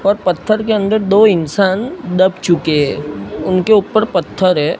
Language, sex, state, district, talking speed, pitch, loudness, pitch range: Hindi, male, Gujarat, Gandhinagar, 150 wpm, 190 Hz, -14 LUFS, 175-215 Hz